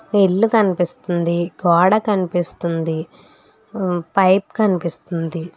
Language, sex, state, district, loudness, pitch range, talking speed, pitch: Telugu, female, Telangana, Hyderabad, -18 LUFS, 170-195 Hz, 75 wpm, 175 Hz